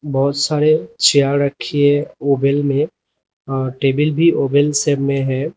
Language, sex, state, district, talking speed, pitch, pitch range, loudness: Hindi, male, Uttar Pradesh, Lalitpur, 140 wpm, 140 Hz, 140-150 Hz, -16 LUFS